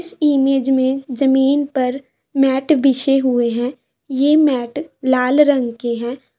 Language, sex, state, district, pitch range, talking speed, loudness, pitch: Hindi, female, Bihar, Sitamarhi, 255-280 Hz, 140 wpm, -16 LUFS, 265 Hz